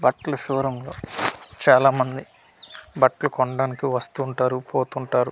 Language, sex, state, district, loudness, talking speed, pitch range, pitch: Telugu, male, Andhra Pradesh, Manyam, -22 LUFS, 100 wpm, 125-135 Hz, 130 Hz